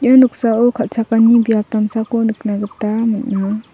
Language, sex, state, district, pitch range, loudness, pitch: Garo, female, Meghalaya, South Garo Hills, 215-230 Hz, -15 LUFS, 225 Hz